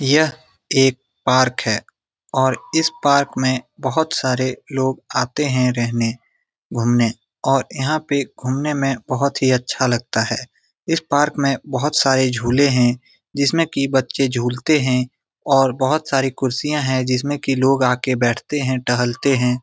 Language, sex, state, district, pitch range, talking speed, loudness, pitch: Hindi, male, Bihar, Lakhisarai, 125-140 Hz, 155 wpm, -19 LUFS, 130 Hz